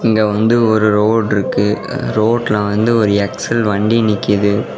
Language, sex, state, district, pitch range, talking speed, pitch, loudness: Tamil, male, Tamil Nadu, Namakkal, 105-115 Hz, 115 wpm, 105 Hz, -14 LUFS